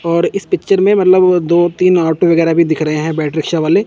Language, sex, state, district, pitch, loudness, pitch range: Hindi, male, Chandigarh, Chandigarh, 170 Hz, -12 LUFS, 160-185 Hz